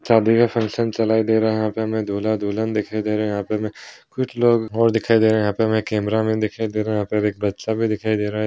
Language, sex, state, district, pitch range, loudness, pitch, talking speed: Hindi, male, Bihar, Kishanganj, 105-110 Hz, -20 LUFS, 110 Hz, 310 wpm